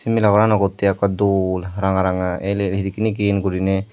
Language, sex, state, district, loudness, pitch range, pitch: Chakma, male, Tripura, Dhalai, -19 LUFS, 95-100 Hz, 100 Hz